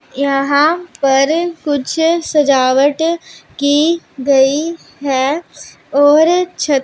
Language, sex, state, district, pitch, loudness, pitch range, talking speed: Hindi, female, Punjab, Pathankot, 290 Hz, -14 LUFS, 275-330 Hz, 80 wpm